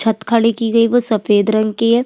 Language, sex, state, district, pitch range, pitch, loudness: Hindi, female, Chhattisgarh, Sukma, 215-230 Hz, 225 Hz, -15 LUFS